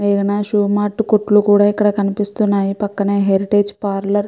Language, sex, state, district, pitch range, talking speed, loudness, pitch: Telugu, female, Andhra Pradesh, Chittoor, 200-205 Hz, 155 wpm, -16 LUFS, 205 Hz